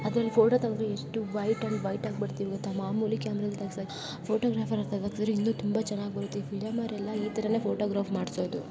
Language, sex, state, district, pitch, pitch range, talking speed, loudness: Kannada, female, Karnataka, Belgaum, 210 Hz, 200-220 Hz, 200 wpm, -31 LUFS